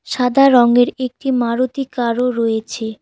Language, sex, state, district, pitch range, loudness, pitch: Bengali, female, West Bengal, Cooch Behar, 235-260 Hz, -16 LUFS, 245 Hz